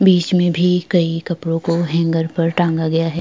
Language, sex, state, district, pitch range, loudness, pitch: Hindi, female, Bihar, Vaishali, 165-175 Hz, -17 LUFS, 170 Hz